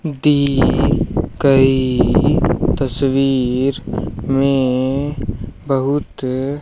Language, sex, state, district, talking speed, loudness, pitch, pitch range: Hindi, male, Rajasthan, Bikaner, 55 wpm, -16 LUFS, 135 Hz, 130-140 Hz